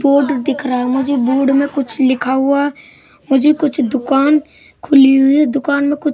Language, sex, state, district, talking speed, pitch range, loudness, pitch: Hindi, male, Madhya Pradesh, Katni, 175 wpm, 270-285 Hz, -14 LUFS, 275 Hz